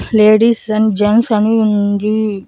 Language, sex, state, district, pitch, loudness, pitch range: Telugu, female, Andhra Pradesh, Annamaya, 215 Hz, -12 LUFS, 210-220 Hz